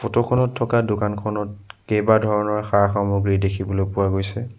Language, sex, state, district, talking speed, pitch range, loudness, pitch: Assamese, male, Assam, Sonitpur, 130 wpm, 100-110 Hz, -21 LUFS, 105 Hz